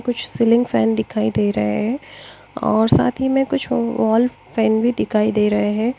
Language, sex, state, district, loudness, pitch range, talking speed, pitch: Hindi, female, Uttar Pradesh, Lalitpur, -18 LUFS, 205-245 Hz, 190 wpm, 225 Hz